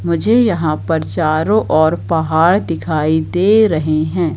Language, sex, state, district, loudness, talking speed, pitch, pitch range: Hindi, female, Madhya Pradesh, Katni, -14 LUFS, 135 wpm, 165 Hz, 155-185 Hz